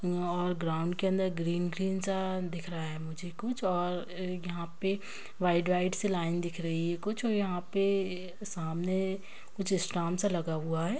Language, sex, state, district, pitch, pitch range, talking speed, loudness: Hindi, female, Bihar, Kishanganj, 180 Hz, 170-190 Hz, 175 wpm, -33 LUFS